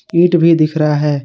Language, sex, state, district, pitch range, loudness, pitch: Hindi, male, Jharkhand, Garhwa, 150-170 Hz, -12 LUFS, 155 Hz